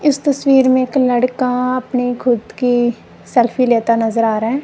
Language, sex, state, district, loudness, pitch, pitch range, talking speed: Hindi, female, Punjab, Kapurthala, -15 LUFS, 250 Hz, 240-255 Hz, 180 wpm